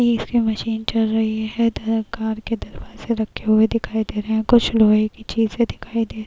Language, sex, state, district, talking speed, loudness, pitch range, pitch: Hindi, female, Uttar Pradesh, Jyotiba Phule Nagar, 210 wpm, -20 LUFS, 220-230 Hz, 225 Hz